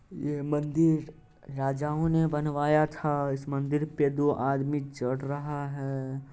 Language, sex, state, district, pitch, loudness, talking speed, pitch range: Hindi, male, Bihar, Supaul, 145 Hz, -29 LUFS, 135 wpm, 140-150 Hz